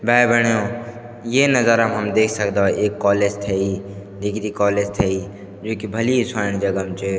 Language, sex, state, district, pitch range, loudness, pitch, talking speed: Garhwali, male, Uttarakhand, Tehri Garhwal, 100-115 Hz, -19 LUFS, 105 Hz, 165 wpm